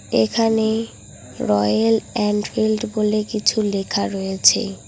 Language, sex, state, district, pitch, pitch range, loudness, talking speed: Bengali, female, West Bengal, Cooch Behar, 215 Hz, 190-220 Hz, -19 LUFS, 85 wpm